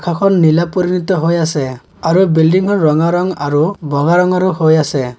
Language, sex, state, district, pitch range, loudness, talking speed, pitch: Assamese, male, Assam, Kamrup Metropolitan, 155-180 Hz, -13 LUFS, 160 wpm, 170 Hz